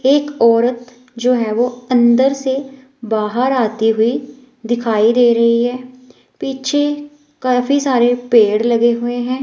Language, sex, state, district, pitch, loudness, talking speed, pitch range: Hindi, female, Himachal Pradesh, Shimla, 245 Hz, -15 LUFS, 135 wpm, 235-265 Hz